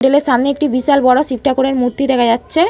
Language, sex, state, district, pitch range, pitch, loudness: Bengali, female, West Bengal, Malda, 255-280 Hz, 265 Hz, -14 LUFS